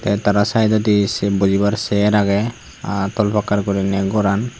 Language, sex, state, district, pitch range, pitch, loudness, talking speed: Chakma, male, Tripura, Unakoti, 100-105 Hz, 100 Hz, -17 LUFS, 155 wpm